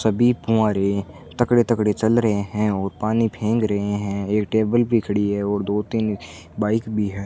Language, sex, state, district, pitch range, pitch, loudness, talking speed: Hindi, male, Rajasthan, Bikaner, 100-110 Hz, 105 Hz, -21 LUFS, 180 wpm